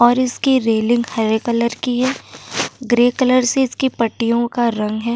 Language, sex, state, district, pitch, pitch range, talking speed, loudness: Hindi, female, Uttar Pradesh, Jyotiba Phule Nagar, 240 Hz, 230-255 Hz, 175 wpm, -17 LUFS